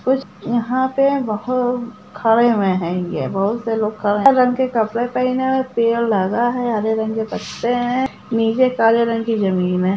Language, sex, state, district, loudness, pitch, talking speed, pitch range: Hindi, male, Bihar, Gopalganj, -18 LUFS, 230 Hz, 180 wpm, 215-250 Hz